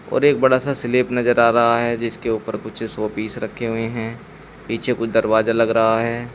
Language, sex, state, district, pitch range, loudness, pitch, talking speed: Hindi, male, Uttar Pradesh, Saharanpur, 115-120 Hz, -19 LUFS, 115 Hz, 215 wpm